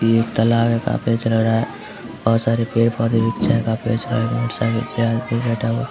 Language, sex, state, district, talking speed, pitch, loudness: Hindi, male, Bihar, Samastipur, 265 wpm, 115 Hz, -19 LUFS